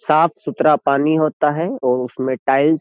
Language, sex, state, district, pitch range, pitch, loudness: Hindi, male, Uttar Pradesh, Jyotiba Phule Nagar, 130-155 Hz, 140 Hz, -17 LUFS